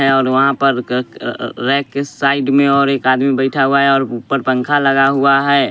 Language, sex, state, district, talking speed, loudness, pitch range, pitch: Hindi, male, Bihar, West Champaran, 230 wpm, -14 LUFS, 135-140 Hz, 135 Hz